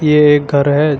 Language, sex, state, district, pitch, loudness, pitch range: Hindi, male, Uttar Pradesh, Shamli, 145 Hz, -12 LUFS, 145-150 Hz